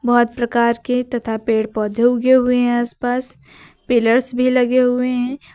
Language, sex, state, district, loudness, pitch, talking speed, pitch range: Hindi, female, Uttar Pradesh, Lucknow, -17 LUFS, 245 Hz, 160 wpm, 235-250 Hz